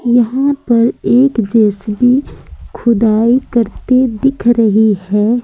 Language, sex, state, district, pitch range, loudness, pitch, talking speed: Hindi, female, Madhya Pradesh, Umaria, 220-250 Hz, -12 LUFS, 235 Hz, 100 wpm